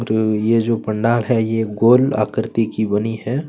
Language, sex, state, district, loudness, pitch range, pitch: Hindi, male, Chhattisgarh, Kabirdham, -18 LUFS, 110-115 Hz, 110 Hz